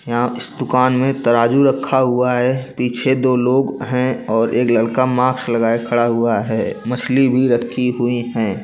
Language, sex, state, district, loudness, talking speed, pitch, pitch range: Hindi, male, Chhattisgarh, Bilaspur, -17 LUFS, 160 wpm, 125 Hz, 120-130 Hz